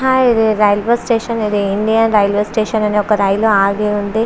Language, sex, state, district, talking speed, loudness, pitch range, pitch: Telugu, female, Andhra Pradesh, Visakhapatnam, 155 wpm, -14 LUFS, 205-225 Hz, 215 Hz